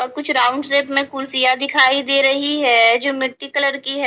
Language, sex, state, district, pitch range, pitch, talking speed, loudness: Hindi, female, Haryana, Charkhi Dadri, 260-280 Hz, 275 Hz, 235 wpm, -16 LUFS